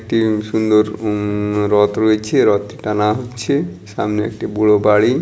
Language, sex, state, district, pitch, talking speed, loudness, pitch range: Bengali, male, West Bengal, Dakshin Dinajpur, 105 Hz, 140 wpm, -16 LUFS, 105-110 Hz